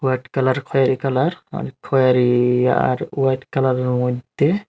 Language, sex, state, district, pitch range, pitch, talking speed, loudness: Bengali, male, Tripura, Unakoti, 125-135 Hz, 130 Hz, 140 wpm, -19 LUFS